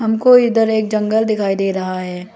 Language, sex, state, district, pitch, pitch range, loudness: Hindi, female, Arunachal Pradesh, Lower Dibang Valley, 215 Hz, 195-225 Hz, -15 LUFS